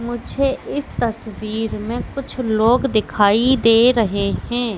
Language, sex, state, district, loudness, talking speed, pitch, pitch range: Hindi, female, Madhya Pradesh, Katni, -18 LUFS, 125 wpm, 230 Hz, 215-250 Hz